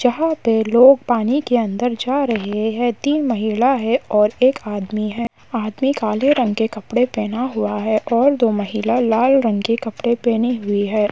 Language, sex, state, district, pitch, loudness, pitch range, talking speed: Hindi, female, Uttar Pradesh, Muzaffarnagar, 235 Hz, -18 LUFS, 215-250 Hz, 185 wpm